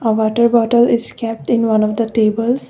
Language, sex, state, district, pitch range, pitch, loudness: English, female, Assam, Kamrup Metropolitan, 220-235 Hz, 230 Hz, -15 LUFS